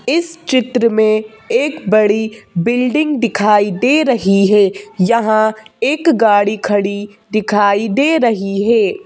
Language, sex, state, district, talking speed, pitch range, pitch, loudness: Hindi, female, Madhya Pradesh, Bhopal, 120 wpm, 205-255 Hz, 220 Hz, -14 LUFS